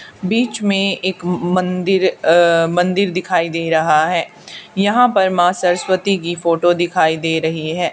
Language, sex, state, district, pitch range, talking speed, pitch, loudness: Hindi, female, Haryana, Charkhi Dadri, 170-190 Hz, 150 wpm, 180 Hz, -16 LUFS